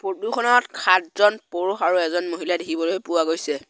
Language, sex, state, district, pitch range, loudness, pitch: Assamese, male, Assam, Sonitpur, 165-200 Hz, -21 LUFS, 180 Hz